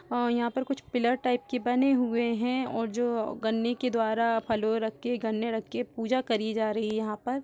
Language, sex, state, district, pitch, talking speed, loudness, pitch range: Hindi, female, Uttar Pradesh, Etah, 235 Hz, 225 wpm, -29 LUFS, 225-245 Hz